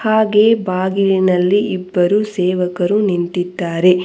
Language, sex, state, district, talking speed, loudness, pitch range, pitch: Kannada, female, Karnataka, Bangalore, 75 wpm, -15 LUFS, 180-205 Hz, 185 Hz